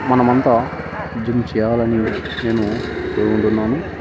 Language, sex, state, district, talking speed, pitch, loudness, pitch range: Telugu, male, Andhra Pradesh, Annamaya, 75 wpm, 115 Hz, -18 LUFS, 110-120 Hz